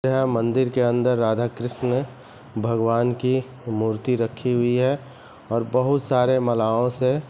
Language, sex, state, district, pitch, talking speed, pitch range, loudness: Hindi, male, Chhattisgarh, Rajnandgaon, 125 Hz, 130 wpm, 115-130 Hz, -22 LUFS